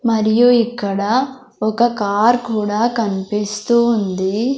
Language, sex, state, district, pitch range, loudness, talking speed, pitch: Telugu, female, Andhra Pradesh, Sri Satya Sai, 210-240 Hz, -17 LUFS, 80 wpm, 225 Hz